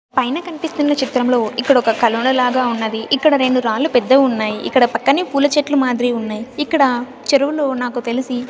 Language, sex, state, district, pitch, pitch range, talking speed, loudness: Telugu, female, Andhra Pradesh, Sri Satya Sai, 255 Hz, 240-280 Hz, 155 wpm, -16 LUFS